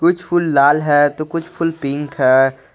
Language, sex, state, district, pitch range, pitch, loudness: Hindi, male, Jharkhand, Garhwa, 140-165 Hz, 150 Hz, -15 LUFS